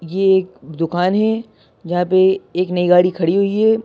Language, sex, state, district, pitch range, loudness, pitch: Hindi, male, Madhya Pradesh, Bhopal, 175-195 Hz, -16 LUFS, 185 Hz